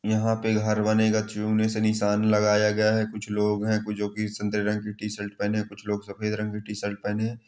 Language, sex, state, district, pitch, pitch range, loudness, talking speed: Hindi, male, Chhattisgarh, Balrampur, 105 Hz, 105-110 Hz, -26 LUFS, 235 wpm